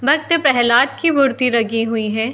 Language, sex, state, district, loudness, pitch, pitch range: Hindi, female, Uttar Pradesh, Muzaffarnagar, -16 LUFS, 250 Hz, 230-285 Hz